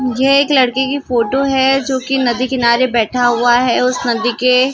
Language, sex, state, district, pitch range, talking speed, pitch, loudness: Hindi, female, Maharashtra, Gondia, 245-270 Hz, 200 wpm, 255 Hz, -14 LUFS